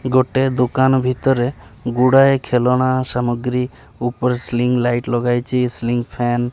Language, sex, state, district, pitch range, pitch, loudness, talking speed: Odia, male, Odisha, Malkangiri, 120-130 Hz, 125 Hz, -18 LUFS, 120 wpm